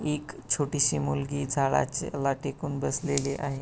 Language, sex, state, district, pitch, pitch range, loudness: Marathi, male, Maharashtra, Pune, 140 Hz, 135-145 Hz, -28 LUFS